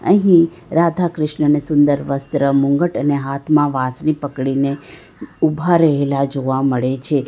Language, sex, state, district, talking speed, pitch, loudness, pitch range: Gujarati, female, Gujarat, Valsad, 115 wpm, 145 Hz, -17 LUFS, 140-155 Hz